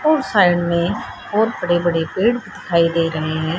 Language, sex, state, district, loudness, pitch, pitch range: Hindi, female, Haryana, Charkhi Dadri, -18 LUFS, 175 Hz, 165-215 Hz